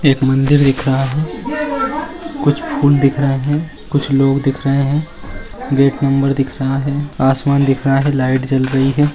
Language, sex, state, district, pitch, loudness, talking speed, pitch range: Magahi, male, Bihar, Jahanabad, 140 Hz, -15 LUFS, 185 wpm, 135-145 Hz